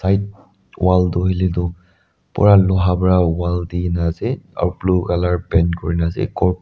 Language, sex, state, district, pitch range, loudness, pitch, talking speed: Nagamese, male, Nagaland, Dimapur, 85-95 Hz, -18 LUFS, 90 Hz, 170 wpm